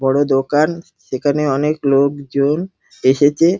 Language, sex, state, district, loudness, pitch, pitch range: Bengali, male, West Bengal, Dakshin Dinajpur, -16 LUFS, 145 Hz, 140-155 Hz